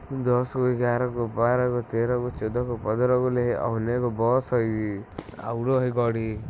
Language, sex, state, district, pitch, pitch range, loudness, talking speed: Maithili, male, Bihar, Muzaffarpur, 120 Hz, 115-125 Hz, -25 LUFS, 185 wpm